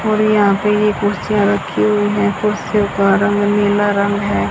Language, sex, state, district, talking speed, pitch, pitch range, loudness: Hindi, female, Haryana, Jhajjar, 185 wpm, 205 Hz, 200-210 Hz, -15 LUFS